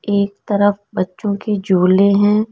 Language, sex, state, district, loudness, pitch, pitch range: Hindi, female, Delhi, New Delhi, -16 LUFS, 200 Hz, 200-205 Hz